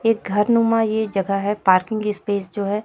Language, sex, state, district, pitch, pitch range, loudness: Hindi, female, Chhattisgarh, Raipur, 210 Hz, 200-220 Hz, -20 LUFS